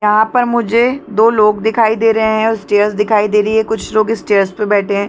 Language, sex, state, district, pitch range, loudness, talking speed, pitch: Hindi, female, Chhattisgarh, Bilaspur, 210-225 Hz, -13 LUFS, 260 wpm, 215 Hz